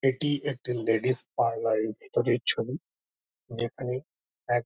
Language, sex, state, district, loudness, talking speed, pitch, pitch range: Bengali, male, West Bengal, Dakshin Dinajpur, -28 LUFS, 115 wpm, 120 Hz, 110-130 Hz